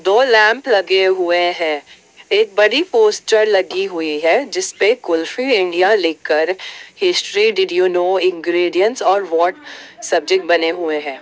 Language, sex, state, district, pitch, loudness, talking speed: Hindi, female, Jharkhand, Ranchi, 190 Hz, -15 LUFS, 145 wpm